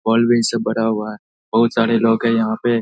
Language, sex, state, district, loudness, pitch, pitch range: Hindi, male, Bihar, Saharsa, -17 LUFS, 115 Hz, 110-115 Hz